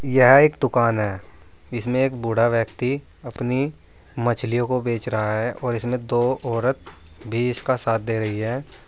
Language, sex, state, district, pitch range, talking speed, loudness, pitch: Hindi, male, Uttar Pradesh, Saharanpur, 115-130 Hz, 160 wpm, -22 LUFS, 120 Hz